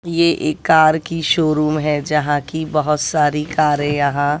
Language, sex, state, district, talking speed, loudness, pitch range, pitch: Hindi, female, Bihar, West Champaran, 165 wpm, -17 LUFS, 145-160 Hz, 150 Hz